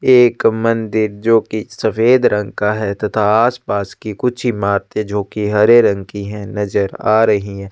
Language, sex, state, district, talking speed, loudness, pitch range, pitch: Hindi, male, Chhattisgarh, Sukma, 180 wpm, -15 LUFS, 105-115 Hz, 105 Hz